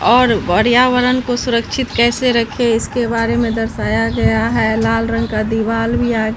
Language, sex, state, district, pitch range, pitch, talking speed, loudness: Hindi, female, Bihar, Katihar, 220-240 Hz, 230 Hz, 170 wpm, -15 LUFS